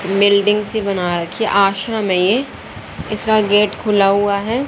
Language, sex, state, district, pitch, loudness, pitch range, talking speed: Hindi, female, Haryana, Rohtak, 205 Hz, -16 LUFS, 195-215 Hz, 165 wpm